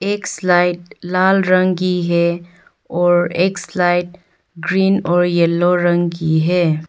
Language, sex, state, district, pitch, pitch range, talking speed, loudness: Hindi, female, Arunachal Pradesh, Longding, 175 Hz, 175-185 Hz, 120 wpm, -16 LUFS